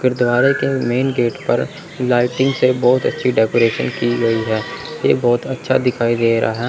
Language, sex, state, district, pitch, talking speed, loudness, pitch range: Hindi, male, Chandigarh, Chandigarh, 120 Hz, 170 wpm, -17 LUFS, 115-130 Hz